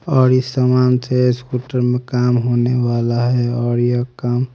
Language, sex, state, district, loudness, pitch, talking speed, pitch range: Hindi, male, Haryana, Rohtak, -17 LUFS, 125 Hz, 170 wpm, 120-125 Hz